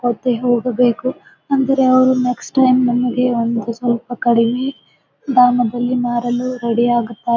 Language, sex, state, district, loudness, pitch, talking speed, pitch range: Kannada, female, Karnataka, Bijapur, -16 LUFS, 245 Hz, 115 wpm, 240-255 Hz